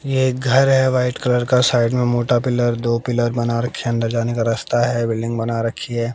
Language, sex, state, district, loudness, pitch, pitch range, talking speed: Hindi, male, Haryana, Jhajjar, -18 LUFS, 120 Hz, 115-125 Hz, 245 wpm